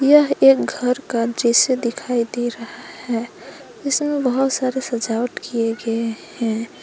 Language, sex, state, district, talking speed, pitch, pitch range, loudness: Hindi, female, Jharkhand, Palamu, 140 wpm, 240 Hz, 230-265 Hz, -19 LUFS